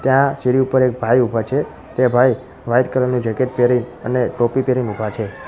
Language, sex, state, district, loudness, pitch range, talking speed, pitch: Gujarati, male, Gujarat, Gandhinagar, -18 LUFS, 120-130 Hz, 210 wpm, 125 Hz